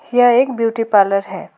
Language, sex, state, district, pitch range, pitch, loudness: Hindi, female, West Bengal, Alipurduar, 195-245 Hz, 230 Hz, -15 LUFS